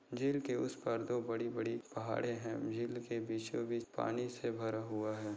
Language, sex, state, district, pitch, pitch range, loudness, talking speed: Hindi, male, Bihar, Jahanabad, 115 Hz, 110-120 Hz, -39 LUFS, 180 wpm